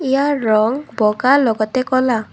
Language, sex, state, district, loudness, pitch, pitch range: Assamese, female, Assam, Kamrup Metropolitan, -16 LUFS, 255 Hz, 220-270 Hz